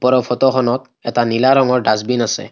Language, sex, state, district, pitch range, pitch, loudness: Assamese, male, Assam, Kamrup Metropolitan, 120-130 Hz, 125 Hz, -15 LUFS